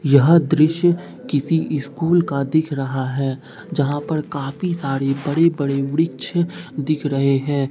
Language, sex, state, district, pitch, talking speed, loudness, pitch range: Hindi, male, Bihar, Katihar, 145 Hz, 140 wpm, -20 LUFS, 140-165 Hz